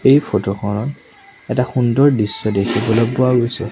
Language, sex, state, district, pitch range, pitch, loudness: Assamese, male, Assam, Sonitpur, 105-125 Hz, 120 Hz, -17 LUFS